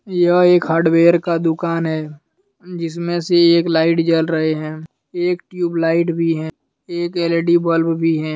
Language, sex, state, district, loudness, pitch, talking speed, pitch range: Hindi, male, Jharkhand, Deoghar, -17 LUFS, 170 Hz, 160 wpm, 165-175 Hz